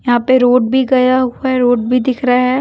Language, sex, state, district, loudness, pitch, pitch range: Hindi, female, Jharkhand, Deoghar, -13 LUFS, 250 Hz, 245-260 Hz